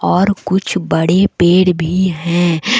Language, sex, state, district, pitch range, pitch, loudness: Hindi, female, Jharkhand, Deoghar, 175-190 Hz, 185 Hz, -14 LUFS